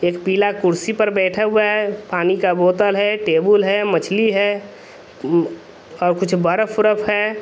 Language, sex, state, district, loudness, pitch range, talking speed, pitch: Hindi, male, Bihar, Vaishali, -17 LUFS, 185-215 Hz, 160 wpm, 205 Hz